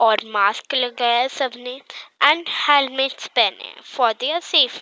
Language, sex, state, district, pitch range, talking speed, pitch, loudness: Hindi, female, Maharashtra, Mumbai Suburban, 240-290 Hz, 160 wpm, 260 Hz, -19 LUFS